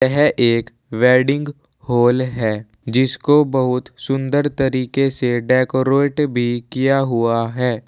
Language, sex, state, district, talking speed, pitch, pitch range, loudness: Hindi, male, Uttar Pradesh, Saharanpur, 115 wpm, 130 Hz, 120-135 Hz, -17 LUFS